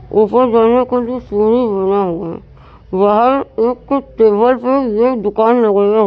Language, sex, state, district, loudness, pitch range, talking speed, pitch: Hindi, female, Uttar Pradesh, Varanasi, -13 LUFS, 205-245 Hz, 160 wpm, 225 Hz